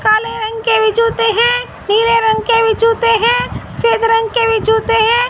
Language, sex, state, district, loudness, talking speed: Hindi, female, Haryana, Jhajjar, -13 LUFS, 205 wpm